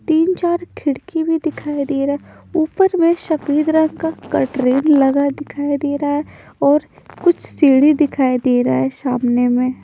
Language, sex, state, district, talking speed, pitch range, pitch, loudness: Hindi, female, Punjab, Pathankot, 165 wpm, 270-320 Hz, 290 Hz, -17 LUFS